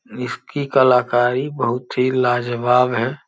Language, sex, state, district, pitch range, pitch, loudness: Hindi, male, Uttar Pradesh, Gorakhpur, 120-130 Hz, 125 Hz, -18 LUFS